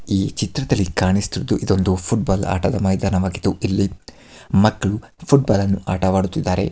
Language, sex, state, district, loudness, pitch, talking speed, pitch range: Kannada, male, Karnataka, Mysore, -19 LUFS, 100 Hz, 125 wpm, 95-105 Hz